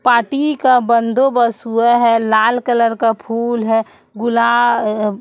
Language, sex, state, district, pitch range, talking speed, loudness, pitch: Hindi, female, Chhattisgarh, Raipur, 225-240 Hz, 125 wpm, -15 LUFS, 235 Hz